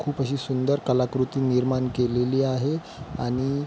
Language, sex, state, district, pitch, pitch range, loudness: Marathi, male, Maharashtra, Pune, 130 Hz, 125-140 Hz, -25 LUFS